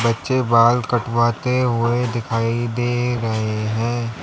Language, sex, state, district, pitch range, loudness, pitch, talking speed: Hindi, male, Uttar Pradesh, Lalitpur, 115-120 Hz, -19 LUFS, 120 Hz, 115 wpm